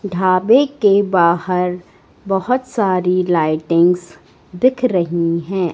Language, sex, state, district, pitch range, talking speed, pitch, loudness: Hindi, female, Madhya Pradesh, Katni, 175-200 Hz, 95 wpm, 185 Hz, -16 LUFS